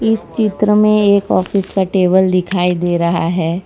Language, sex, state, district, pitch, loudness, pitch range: Hindi, female, Gujarat, Valsad, 190 Hz, -14 LUFS, 175-205 Hz